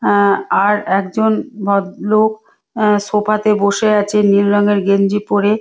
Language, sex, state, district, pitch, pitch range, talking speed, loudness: Bengali, female, West Bengal, Malda, 205 Hz, 200-215 Hz, 140 wpm, -14 LUFS